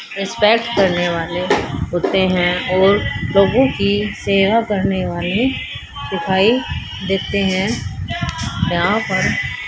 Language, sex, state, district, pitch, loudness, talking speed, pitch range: Hindi, female, Haryana, Rohtak, 195 Hz, -17 LUFS, 100 wpm, 185-210 Hz